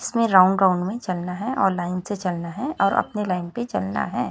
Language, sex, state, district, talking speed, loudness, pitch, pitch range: Hindi, female, Chhattisgarh, Raipur, 235 wpm, -22 LUFS, 190 Hz, 180-230 Hz